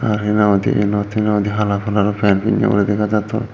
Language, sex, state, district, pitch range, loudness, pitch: Chakma, male, Tripura, Dhalai, 100-105 Hz, -17 LUFS, 105 Hz